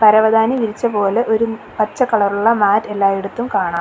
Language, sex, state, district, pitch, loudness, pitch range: Malayalam, female, Kerala, Kollam, 215 Hz, -16 LUFS, 205-225 Hz